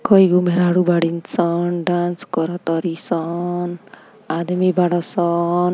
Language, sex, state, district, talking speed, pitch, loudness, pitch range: Bhojpuri, female, Uttar Pradesh, Ghazipur, 115 wpm, 175 Hz, -19 LUFS, 170-180 Hz